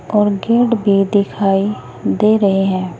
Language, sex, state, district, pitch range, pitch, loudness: Hindi, female, Uttar Pradesh, Saharanpur, 195-210 Hz, 200 Hz, -15 LUFS